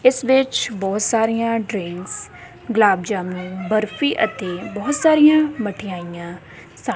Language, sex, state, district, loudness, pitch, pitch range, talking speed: Punjabi, female, Punjab, Kapurthala, -19 LUFS, 215 Hz, 185-255 Hz, 120 wpm